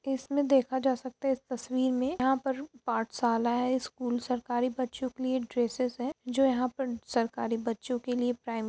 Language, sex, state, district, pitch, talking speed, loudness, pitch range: Hindi, female, Bihar, Lakhisarai, 255 Hz, 195 wpm, -31 LUFS, 240-265 Hz